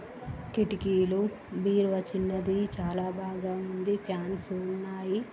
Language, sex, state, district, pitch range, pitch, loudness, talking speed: Telugu, female, Andhra Pradesh, Srikakulam, 185-200 Hz, 190 Hz, -31 LUFS, 100 wpm